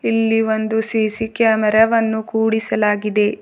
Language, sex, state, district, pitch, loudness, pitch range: Kannada, female, Karnataka, Bidar, 220 Hz, -17 LUFS, 215-225 Hz